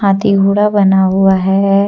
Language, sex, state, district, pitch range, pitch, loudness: Hindi, female, Jharkhand, Deoghar, 190-200 Hz, 195 Hz, -11 LUFS